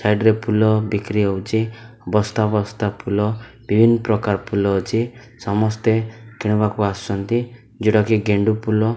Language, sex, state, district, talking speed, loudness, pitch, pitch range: Odia, male, Odisha, Malkangiri, 120 wpm, -19 LUFS, 110 Hz, 105-115 Hz